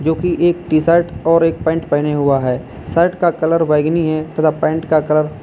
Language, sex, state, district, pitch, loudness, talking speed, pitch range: Hindi, male, Uttar Pradesh, Lalitpur, 160 Hz, -15 LUFS, 220 wpm, 150-165 Hz